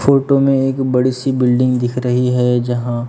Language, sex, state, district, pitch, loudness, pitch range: Hindi, male, Maharashtra, Gondia, 125 Hz, -15 LUFS, 125-135 Hz